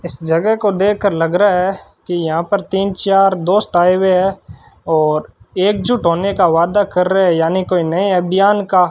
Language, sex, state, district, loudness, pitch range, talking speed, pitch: Hindi, male, Rajasthan, Bikaner, -14 LUFS, 175-200 Hz, 195 wpm, 185 Hz